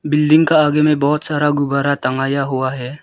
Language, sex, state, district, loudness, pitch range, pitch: Hindi, male, Arunachal Pradesh, Lower Dibang Valley, -16 LUFS, 135-150 Hz, 145 Hz